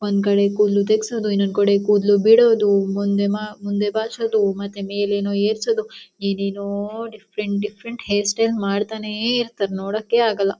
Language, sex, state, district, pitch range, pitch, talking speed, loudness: Kannada, female, Karnataka, Shimoga, 200-220 Hz, 205 Hz, 130 wpm, -20 LUFS